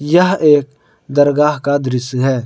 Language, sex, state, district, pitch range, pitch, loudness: Hindi, male, Jharkhand, Ranchi, 130-150 Hz, 145 Hz, -14 LUFS